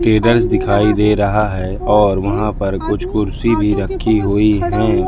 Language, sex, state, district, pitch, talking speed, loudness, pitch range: Hindi, male, Madhya Pradesh, Katni, 105 Hz, 165 wpm, -15 LUFS, 100-110 Hz